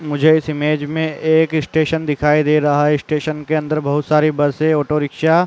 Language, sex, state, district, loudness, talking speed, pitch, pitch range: Hindi, male, Uttar Pradesh, Muzaffarnagar, -16 LUFS, 195 wpm, 150 Hz, 150-155 Hz